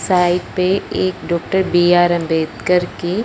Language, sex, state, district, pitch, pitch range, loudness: Hindi, male, Punjab, Fazilka, 175 Hz, 170-185 Hz, -16 LUFS